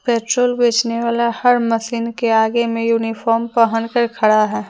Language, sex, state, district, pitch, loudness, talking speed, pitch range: Hindi, female, Jharkhand, Deoghar, 230 Hz, -17 LUFS, 165 wpm, 225-235 Hz